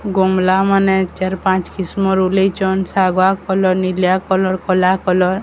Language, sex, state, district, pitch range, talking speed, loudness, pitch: Odia, male, Odisha, Sambalpur, 185-190 Hz, 130 wpm, -15 LUFS, 190 Hz